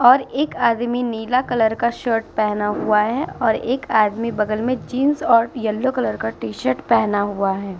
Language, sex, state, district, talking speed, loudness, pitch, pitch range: Hindi, female, Uttar Pradesh, Muzaffarnagar, 185 wpm, -20 LUFS, 230 Hz, 210-245 Hz